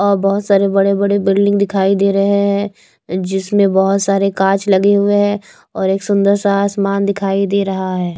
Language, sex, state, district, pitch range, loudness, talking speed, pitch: Hindi, female, Maharashtra, Mumbai Suburban, 195-200 Hz, -14 LUFS, 185 wpm, 200 Hz